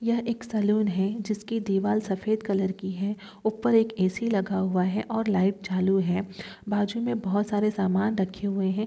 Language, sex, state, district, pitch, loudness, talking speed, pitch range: Hindi, female, Bihar, East Champaran, 205 Hz, -26 LUFS, 195 wpm, 195-220 Hz